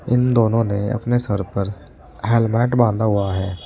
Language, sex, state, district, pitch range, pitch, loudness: Hindi, male, Uttar Pradesh, Saharanpur, 100-120 Hz, 110 Hz, -19 LUFS